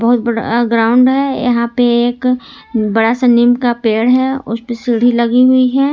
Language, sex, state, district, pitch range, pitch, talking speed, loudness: Hindi, female, Jharkhand, Ranchi, 235-255 Hz, 240 Hz, 190 wpm, -13 LUFS